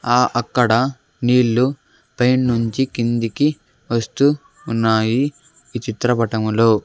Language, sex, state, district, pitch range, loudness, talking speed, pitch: Telugu, male, Andhra Pradesh, Sri Satya Sai, 115-135 Hz, -18 LUFS, 90 wpm, 120 Hz